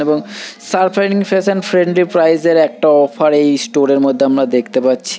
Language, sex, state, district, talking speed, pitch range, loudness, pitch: Bengali, male, West Bengal, Purulia, 175 wpm, 140-185 Hz, -13 LUFS, 155 Hz